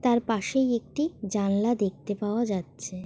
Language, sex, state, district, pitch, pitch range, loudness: Bengali, female, West Bengal, Jalpaiguri, 210 Hz, 195-240 Hz, -27 LUFS